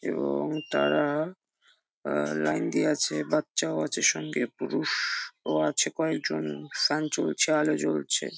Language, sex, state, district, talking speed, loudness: Bengali, female, West Bengal, Jhargram, 150 wpm, -27 LUFS